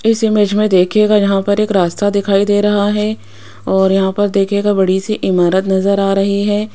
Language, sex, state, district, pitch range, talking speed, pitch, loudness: Hindi, female, Rajasthan, Jaipur, 190-205 Hz, 205 wpm, 200 Hz, -13 LUFS